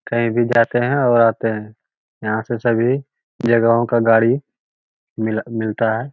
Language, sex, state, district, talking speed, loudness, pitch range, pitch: Magahi, male, Bihar, Lakhisarai, 155 wpm, -18 LUFS, 110-120 Hz, 115 Hz